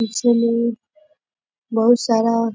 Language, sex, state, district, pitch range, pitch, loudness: Hindi, female, Bihar, Bhagalpur, 230-245 Hz, 235 Hz, -18 LUFS